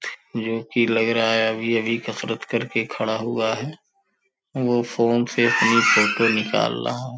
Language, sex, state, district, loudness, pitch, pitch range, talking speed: Hindi, male, Uttar Pradesh, Gorakhpur, -21 LUFS, 115 Hz, 115-120 Hz, 160 wpm